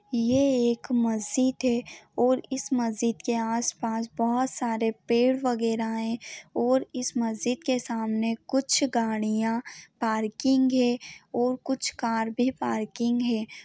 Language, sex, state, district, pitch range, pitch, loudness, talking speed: Hindi, female, Jharkhand, Jamtara, 225-255 Hz, 240 Hz, -27 LUFS, 135 wpm